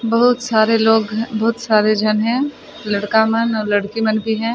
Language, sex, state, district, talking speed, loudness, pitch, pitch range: Chhattisgarhi, female, Chhattisgarh, Sarguja, 185 wpm, -17 LUFS, 220 Hz, 215-230 Hz